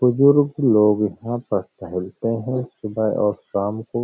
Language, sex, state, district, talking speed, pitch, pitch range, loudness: Hindi, male, Uttar Pradesh, Hamirpur, 150 wpm, 110 Hz, 105-125 Hz, -21 LUFS